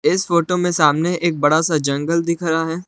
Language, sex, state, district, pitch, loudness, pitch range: Hindi, male, Jharkhand, Palamu, 170 Hz, -18 LUFS, 160-175 Hz